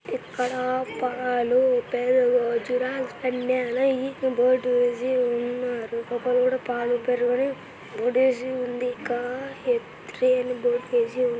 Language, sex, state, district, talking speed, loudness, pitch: Telugu, female, Andhra Pradesh, Anantapur, 90 wpm, -24 LUFS, 255 Hz